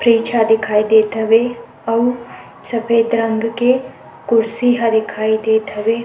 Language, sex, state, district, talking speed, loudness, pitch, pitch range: Chhattisgarhi, female, Chhattisgarh, Sukma, 140 wpm, -16 LUFS, 230 Hz, 220-235 Hz